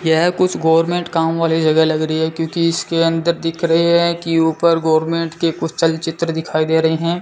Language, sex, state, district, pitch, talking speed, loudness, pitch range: Hindi, male, Rajasthan, Bikaner, 165 Hz, 210 wpm, -16 LUFS, 160-170 Hz